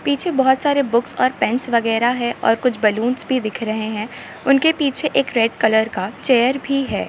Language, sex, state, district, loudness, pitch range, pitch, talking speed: Hindi, female, Jharkhand, Sahebganj, -18 LUFS, 225-275 Hz, 245 Hz, 205 wpm